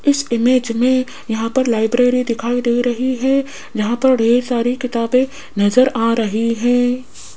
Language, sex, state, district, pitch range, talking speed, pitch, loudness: Hindi, female, Rajasthan, Jaipur, 230-255 Hz, 155 wpm, 245 Hz, -17 LUFS